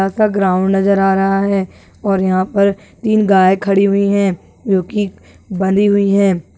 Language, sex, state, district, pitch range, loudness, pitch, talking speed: Hindi, female, Rajasthan, Churu, 190-200 Hz, -14 LUFS, 195 Hz, 175 wpm